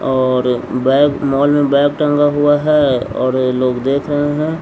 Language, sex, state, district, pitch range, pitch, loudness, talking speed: Hindi, male, Bihar, Patna, 130-145 Hz, 140 Hz, -14 LUFS, 180 wpm